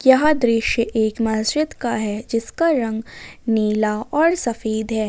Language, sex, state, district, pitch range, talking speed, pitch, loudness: Hindi, female, Jharkhand, Ranchi, 220-260 Hz, 140 wpm, 230 Hz, -20 LUFS